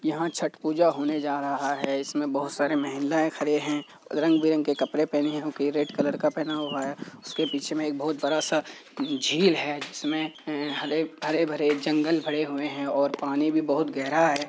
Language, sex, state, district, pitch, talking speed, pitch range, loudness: Hindi, male, Bihar, Kishanganj, 150 Hz, 185 wpm, 145-155 Hz, -26 LUFS